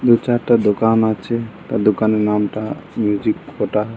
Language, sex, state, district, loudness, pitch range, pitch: Bengali, male, West Bengal, Purulia, -18 LUFS, 105-115 Hz, 110 Hz